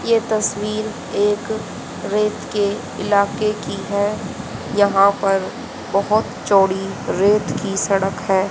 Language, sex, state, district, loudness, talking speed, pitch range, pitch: Hindi, female, Haryana, Jhajjar, -19 LUFS, 115 wpm, 195-215 Hz, 200 Hz